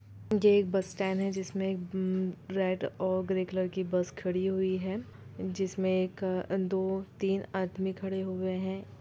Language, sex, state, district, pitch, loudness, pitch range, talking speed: Hindi, female, Bihar, Gopalganj, 190 Hz, -32 LUFS, 185-190 Hz, 160 wpm